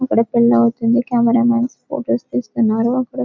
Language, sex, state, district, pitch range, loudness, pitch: Telugu, female, Telangana, Karimnagar, 230-245 Hz, -16 LUFS, 235 Hz